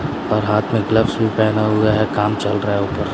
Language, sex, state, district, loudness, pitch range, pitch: Hindi, male, Bihar, West Champaran, -17 LUFS, 105-110 Hz, 105 Hz